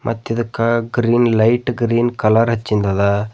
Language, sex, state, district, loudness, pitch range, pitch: Kannada, male, Karnataka, Bidar, -16 LUFS, 110-120 Hz, 115 Hz